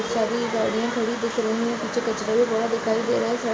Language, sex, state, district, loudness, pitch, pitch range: Hindi, female, Uttar Pradesh, Jalaun, -24 LUFS, 230 Hz, 225-235 Hz